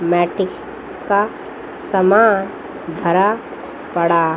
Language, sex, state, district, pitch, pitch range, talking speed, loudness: Hindi, female, Chandigarh, Chandigarh, 195 Hz, 170-215 Hz, 70 wpm, -17 LUFS